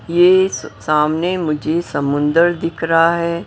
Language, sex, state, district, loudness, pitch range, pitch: Hindi, female, Maharashtra, Mumbai Suburban, -16 LUFS, 155-175 Hz, 165 Hz